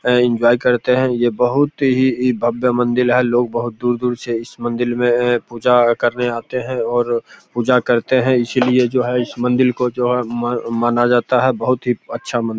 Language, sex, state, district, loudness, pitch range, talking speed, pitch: Hindi, male, Bihar, Begusarai, -17 LUFS, 120-125 Hz, 190 wpm, 120 Hz